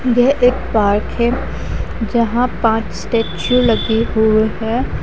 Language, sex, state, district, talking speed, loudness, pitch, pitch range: Hindi, female, Haryana, Charkhi Dadri, 120 wpm, -16 LUFS, 230 Hz, 220-245 Hz